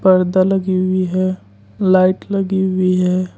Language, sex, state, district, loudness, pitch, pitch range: Hindi, male, Jharkhand, Ranchi, -16 LUFS, 185 Hz, 185-190 Hz